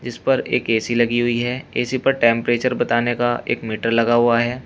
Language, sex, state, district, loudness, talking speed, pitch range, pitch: Hindi, male, Uttar Pradesh, Shamli, -19 LUFS, 220 wpm, 120-125 Hz, 120 Hz